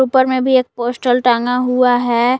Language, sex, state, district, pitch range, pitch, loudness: Hindi, female, Jharkhand, Palamu, 245-260 Hz, 250 Hz, -15 LUFS